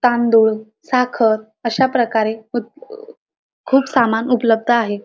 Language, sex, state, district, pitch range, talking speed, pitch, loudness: Marathi, female, Maharashtra, Dhule, 220-255 Hz, 105 wpm, 235 Hz, -17 LUFS